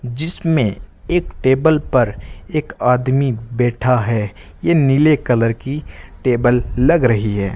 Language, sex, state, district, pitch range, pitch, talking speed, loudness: Hindi, male, Rajasthan, Bikaner, 115-145 Hz, 125 Hz, 125 wpm, -17 LUFS